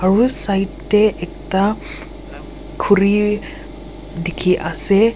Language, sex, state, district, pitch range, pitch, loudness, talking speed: Nagamese, female, Nagaland, Kohima, 175-210 Hz, 195 Hz, -17 LUFS, 80 wpm